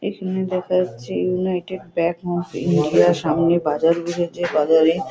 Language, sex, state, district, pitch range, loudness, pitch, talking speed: Bengali, female, West Bengal, North 24 Parganas, 160-185 Hz, -20 LUFS, 170 Hz, 140 wpm